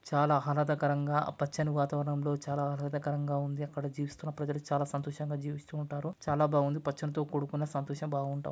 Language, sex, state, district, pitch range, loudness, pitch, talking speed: Telugu, male, Andhra Pradesh, Chittoor, 145-150 Hz, -33 LUFS, 145 Hz, 155 wpm